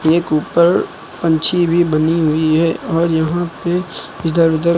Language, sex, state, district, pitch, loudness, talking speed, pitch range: Hindi, male, Uttar Pradesh, Lucknow, 165 Hz, -15 LUFS, 150 wpm, 160-170 Hz